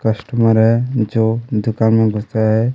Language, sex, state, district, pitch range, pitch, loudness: Hindi, male, Chhattisgarh, Kabirdham, 110-115 Hz, 110 Hz, -16 LUFS